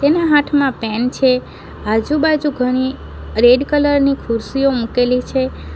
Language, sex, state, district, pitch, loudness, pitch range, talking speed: Gujarati, female, Gujarat, Valsad, 260 Hz, -16 LUFS, 245-285 Hz, 125 wpm